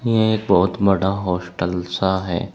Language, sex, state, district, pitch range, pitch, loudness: Hindi, male, Uttar Pradesh, Saharanpur, 90-100 Hz, 95 Hz, -19 LUFS